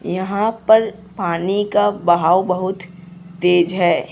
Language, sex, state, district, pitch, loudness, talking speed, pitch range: Hindi, male, Jharkhand, Deoghar, 185 Hz, -17 LUFS, 115 wpm, 175-205 Hz